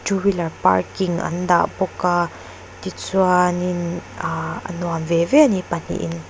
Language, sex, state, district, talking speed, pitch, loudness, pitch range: Mizo, female, Mizoram, Aizawl, 150 wpm, 175 Hz, -20 LUFS, 170-185 Hz